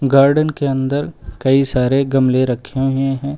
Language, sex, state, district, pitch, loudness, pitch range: Hindi, male, Uttar Pradesh, Lucknow, 135 Hz, -16 LUFS, 130-140 Hz